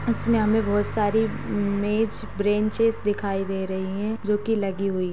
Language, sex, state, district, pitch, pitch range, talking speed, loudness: Hindi, female, Bihar, Saharsa, 205 Hz, 195-220 Hz, 165 wpm, -24 LUFS